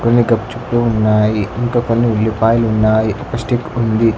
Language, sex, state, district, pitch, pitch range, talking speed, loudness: Telugu, male, Telangana, Hyderabad, 115 Hz, 110-120 Hz, 170 wpm, -15 LUFS